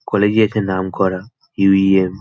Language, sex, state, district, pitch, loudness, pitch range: Bengali, male, West Bengal, North 24 Parganas, 95 Hz, -16 LUFS, 95-105 Hz